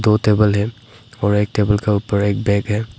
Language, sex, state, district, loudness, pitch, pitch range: Hindi, male, Arunachal Pradesh, Papum Pare, -17 LUFS, 105 Hz, 105-110 Hz